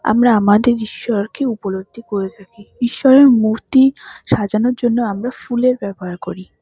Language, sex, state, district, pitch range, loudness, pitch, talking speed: Bengali, female, West Bengal, North 24 Parganas, 205-245 Hz, -16 LUFS, 230 Hz, 135 wpm